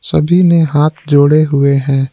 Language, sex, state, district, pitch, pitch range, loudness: Hindi, male, Jharkhand, Palamu, 145 Hz, 140-155 Hz, -11 LUFS